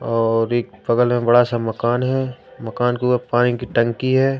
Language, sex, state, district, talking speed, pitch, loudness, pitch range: Hindi, male, Madhya Pradesh, Katni, 205 wpm, 120 Hz, -19 LUFS, 115-125 Hz